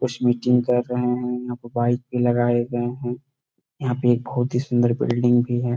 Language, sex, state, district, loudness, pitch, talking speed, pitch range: Hindi, male, Bihar, Saran, -22 LUFS, 120 Hz, 230 wpm, 120-125 Hz